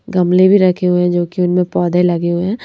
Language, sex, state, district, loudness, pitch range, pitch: Hindi, female, Madhya Pradesh, Bhopal, -13 LUFS, 175-185 Hz, 180 Hz